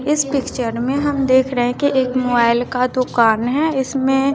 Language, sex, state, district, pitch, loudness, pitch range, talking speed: Hindi, female, Bihar, West Champaran, 260 Hz, -17 LUFS, 245-275 Hz, 195 wpm